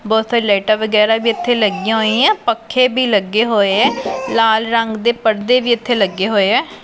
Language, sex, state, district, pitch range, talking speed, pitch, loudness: Punjabi, female, Punjab, Pathankot, 215-235 Hz, 195 wpm, 225 Hz, -14 LUFS